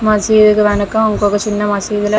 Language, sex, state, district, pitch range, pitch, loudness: Telugu, female, Andhra Pradesh, Visakhapatnam, 205-215 Hz, 210 Hz, -13 LUFS